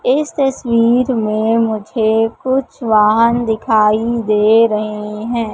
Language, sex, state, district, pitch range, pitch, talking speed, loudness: Hindi, female, Madhya Pradesh, Katni, 215-240 Hz, 225 Hz, 110 wpm, -14 LUFS